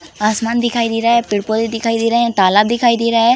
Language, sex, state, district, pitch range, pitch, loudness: Hindi, female, Uttar Pradesh, Jalaun, 220-235 Hz, 230 Hz, -15 LUFS